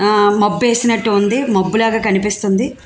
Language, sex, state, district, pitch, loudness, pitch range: Telugu, female, Andhra Pradesh, Visakhapatnam, 210 Hz, -15 LUFS, 205-230 Hz